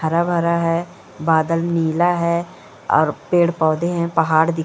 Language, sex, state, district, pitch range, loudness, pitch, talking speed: Hindi, female, Uttarakhand, Uttarkashi, 160-170 Hz, -18 LUFS, 170 Hz, 140 wpm